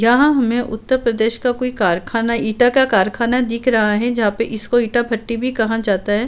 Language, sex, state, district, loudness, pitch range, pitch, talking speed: Hindi, female, Uttar Pradesh, Muzaffarnagar, -17 LUFS, 220-245 Hz, 230 Hz, 210 wpm